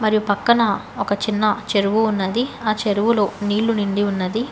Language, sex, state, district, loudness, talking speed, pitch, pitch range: Telugu, female, Telangana, Hyderabad, -19 LUFS, 145 wpm, 210 Hz, 205-220 Hz